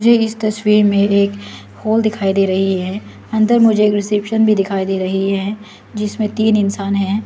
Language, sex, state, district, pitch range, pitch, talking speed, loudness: Hindi, female, Arunachal Pradesh, Lower Dibang Valley, 195-215 Hz, 205 Hz, 190 wpm, -16 LUFS